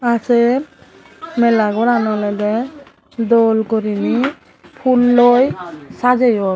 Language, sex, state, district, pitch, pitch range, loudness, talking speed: Chakma, female, Tripura, Dhalai, 235 Hz, 220-250 Hz, -15 LUFS, 80 wpm